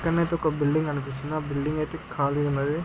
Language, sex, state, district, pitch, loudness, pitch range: Telugu, male, Andhra Pradesh, Guntur, 150 Hz, -27 LUFS, 145-160 Hz